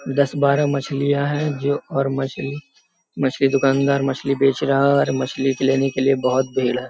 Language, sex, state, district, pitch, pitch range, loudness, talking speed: Hindi, male, Bihar, Jamui, 135 Hz, 135-140 Hz, -20 LUFS, 185 wpm